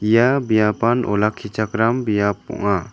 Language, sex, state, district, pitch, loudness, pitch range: Garo, male, Meghalaya, West Garo Hills, 110 Hz, -19 LUFS, 105-115 Hz